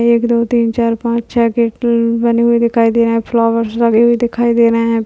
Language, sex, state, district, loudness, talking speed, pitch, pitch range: Hindi, female, Bihar, Kishanganj, -13 LUFS, 250 wpm, 235 Hz, 230-235 Hz